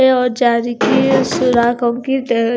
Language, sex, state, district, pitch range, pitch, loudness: Hindi, female, Punjab, Kapurthala, 235-255 Hz, 240 Hz, -15 LUFS